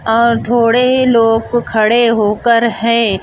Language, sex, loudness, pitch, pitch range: Hindi, female, -12 LUFS, 230 Hz, 225-240 Hz